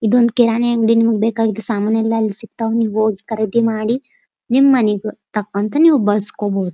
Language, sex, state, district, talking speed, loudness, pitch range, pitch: Kannada, female, Karnataka, Dharwad, 140 wpm, -16 LUFS, 215-230 Hz, 225 Hz